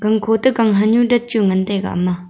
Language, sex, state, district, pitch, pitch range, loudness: Wancho, female, Arunachal Pradesh, Longding, 215 Hz, 195-230 Hz, -16 LUFS